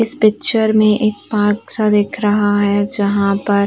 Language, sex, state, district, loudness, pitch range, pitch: Hindi, female, Uttar Pradesh, Varanasi, -15 LUFS, 205-215 Hz, 210 Hz